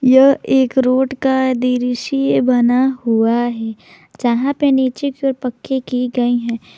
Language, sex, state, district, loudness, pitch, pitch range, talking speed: Hindi, female, Jharkhand, Garhwa, -16 LUFS, 255 Hz, 240-265 Hz, 125 wpm